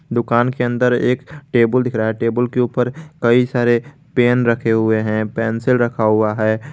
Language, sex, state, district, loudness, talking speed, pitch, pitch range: Hindi, male, Jharkhand, Garhwa, -17 LUFS, 185 wpm, 120 Hz, 115-125 Hz